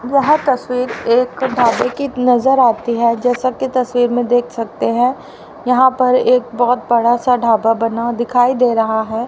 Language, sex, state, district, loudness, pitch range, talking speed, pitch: Hindi, female, Haryana, Rohtak, -15 LUFS, 235-255 Hz, 180 wpm, 245 Hz